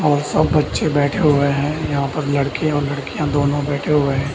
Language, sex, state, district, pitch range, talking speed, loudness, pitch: Hindi, male, Bihar, Darbhanga, 140-150 Hz, 205 wpm, -18 LUFS, 145 Hz